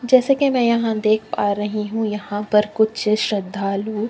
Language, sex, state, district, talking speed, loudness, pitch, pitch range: Hindi, female, Chhattisgarh, Kabirdham, 175 wpm, -20 LUFS, 215 Hz, 210-225 Hz